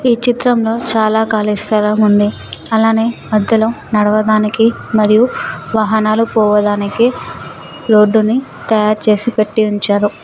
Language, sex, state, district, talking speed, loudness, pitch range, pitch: Telugu, female, Telangana, Mahabubabad, 100 wpm, -13 LUFS, 210-225 Hz, 215 Hz